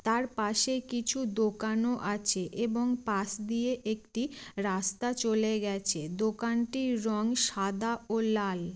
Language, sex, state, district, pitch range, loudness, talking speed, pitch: Bengali, female, West Bengal, Jalpaiguri, 205-240 Hz, -31 LUFS, 115 wpm, 220 Hz